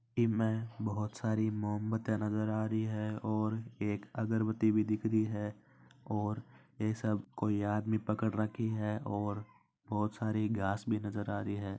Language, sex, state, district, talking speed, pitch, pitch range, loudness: Marwari, male, Rajasthan, Nagaur, 170 wpm, 110 Hz, 105-110 Hz, -35 LUFS